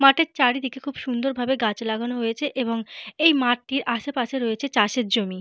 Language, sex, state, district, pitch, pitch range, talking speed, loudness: Bengali, female, Jharkhand, Jamtara, 245 Hz, 230-270 Hz, 175 wpm, -23 LUFS